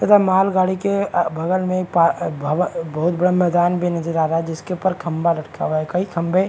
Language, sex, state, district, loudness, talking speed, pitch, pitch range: Hindi, male, Maharashtra, Chandrapur, -19 LUFS, 250 wpm, 175 Hz, 165-185 Hz